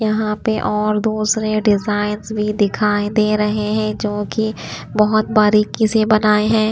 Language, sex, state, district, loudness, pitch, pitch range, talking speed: Hindi, female, Bihar, Kaimur, -17 LUFS, 215 Hz, 210-215 Hz, 150 wpm